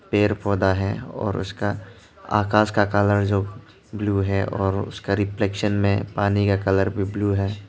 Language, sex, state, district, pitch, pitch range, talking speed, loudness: Hindi, male, Arunachal Pradesh, Lower Dibang Valley, 100 Hz, 100-105 Hz, 165 wpm, -22 LUFS